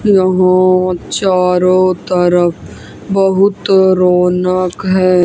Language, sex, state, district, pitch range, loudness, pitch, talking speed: Hindi, male, Haryana, Jhajjar, 180-190 Hz, -12 LUFS, 185 Hz, 70 wpm